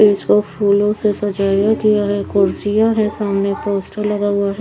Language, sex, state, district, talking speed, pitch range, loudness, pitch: Hindi, female, Haryana, Charkhi Dadri, 170 wpm, 200-210 Hz, -16 LUFS, 205 Hz